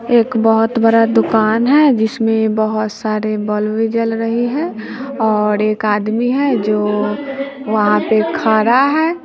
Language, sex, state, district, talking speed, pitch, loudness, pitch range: Hindi, male, Bihar, West Champaran, 145 wpm, 225 Hz, -15 LUFS, 215-245 Hz